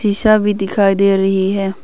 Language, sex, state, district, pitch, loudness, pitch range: Hindi, female, Arunachal Pradesh, Papum Pare, 195 Hz, -14 LUFS, 195-205 Hz